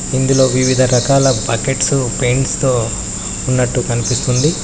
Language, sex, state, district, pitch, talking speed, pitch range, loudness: Telugu, male, Telangana, Mahabubabad, 130 Hz, 105 wpm, 120-135 Hz, -14 LUFS